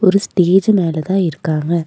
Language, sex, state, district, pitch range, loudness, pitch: Tamil, female, Tamil Nadu, Nilgiris, 165-190 Hz, -15 LUFS, 180 Hz